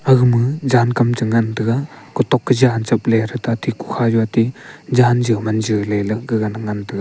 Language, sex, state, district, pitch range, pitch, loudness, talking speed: Wancho, male, Arunachal Pradesh, Longding, 110-125 Hz, 115 Hz, -17 LUFS, 215 wpm